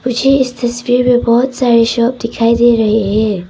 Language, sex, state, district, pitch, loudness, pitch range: Hindi, female, Arunachal Pradesh, Papum Pare, 235 Hz, -12 LUFS, 230-250 Hz